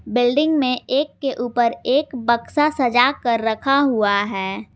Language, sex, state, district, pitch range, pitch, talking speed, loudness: Hindi, female, Jharkhand, Garhwa, 230-275 Hz, 245 Hz, 150 wpm, -19 LUFS